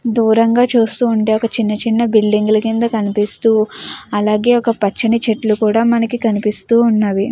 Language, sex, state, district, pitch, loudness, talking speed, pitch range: Telugu, female, Andhra Pradesh, Guntur, 225 Hz, -14 LUFS, 140 wpm, 215-230 Hz